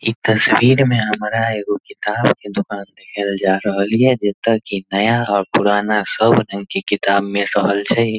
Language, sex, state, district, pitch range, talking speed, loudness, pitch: Maithili, male, Bihar, Darbhanga, 100-110 Hz, 175 wpm, -16 LUFS, 105 Hz